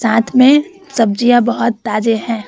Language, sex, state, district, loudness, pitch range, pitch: Hindi, female, Bihar, Vaishali, -13 LUFS, 225-255 Hz, 235 Hz